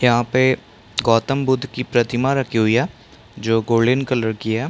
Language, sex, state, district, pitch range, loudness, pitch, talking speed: Hindi, male, Chhattisgarh, Bastar, 115-130 Hz, -19 LUFS, 120 Hz, 165 wpm